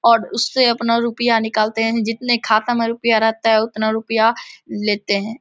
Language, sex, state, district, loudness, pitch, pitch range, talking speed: Hindi, male, Bihar, Samastipur, -17 LUFS, 225 Hz, 220-235 Hz, 175 wpm